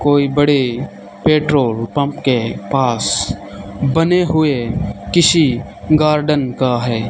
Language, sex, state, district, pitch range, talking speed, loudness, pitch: Hindi, male, Rajasthan, Bikaner, 115-150 Hz, 100 wpm, -15 LUFS, 135 Hz